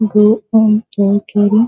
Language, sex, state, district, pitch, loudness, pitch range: Hindi, female, Bihar, Sitamarhi, 215 Hz, -13 LUFS, 205-220 Hz